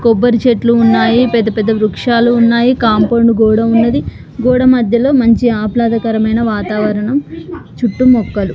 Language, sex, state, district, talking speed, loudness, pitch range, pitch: Telugu, female, Telangana, Karimnagar, 120 wpm, -11 LUFS, 220-240 Hz, 230 Hz